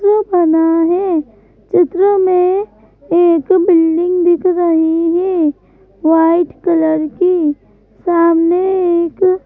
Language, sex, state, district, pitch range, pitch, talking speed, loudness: Hindi, female, Madhya Pradesh, Bhopal, 330-365 Hz, 345 Hz, 90 wpm, -13 LUFS